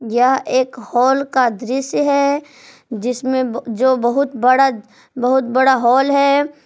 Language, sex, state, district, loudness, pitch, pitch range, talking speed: Hindi, female, Jharkhand, Palamu, -16 LUFS, 260 Hz, 245-270 Hz, 125 wpm